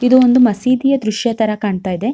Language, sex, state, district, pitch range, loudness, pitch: Kannada, female, Karnataka, Shimoga, 215-255 Hz, -14 LUFS, 235 Hz